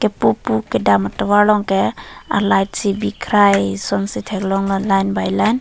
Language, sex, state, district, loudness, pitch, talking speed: Karbi, female, Assam, Karbi Anglong, -17 LUFS, 195 Hz, 190 wpm